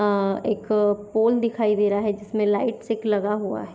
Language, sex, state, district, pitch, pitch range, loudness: Hindi, female, Maharashtra, Chandrapur, 210 Hz, 205-220 Hz, -23 LUFS